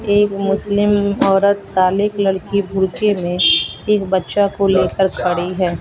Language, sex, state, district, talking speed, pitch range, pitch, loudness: Hindi, female, Bihar, West Champaran, 145 wpm, 190-205 Hz, 195 Hz, -16 LUFS